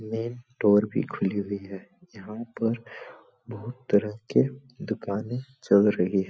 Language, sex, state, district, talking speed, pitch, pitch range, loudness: Hindi, male, Bihar, Supaul, 145 wpm, 110 Hz, 100-125 Hz, -27 LUFS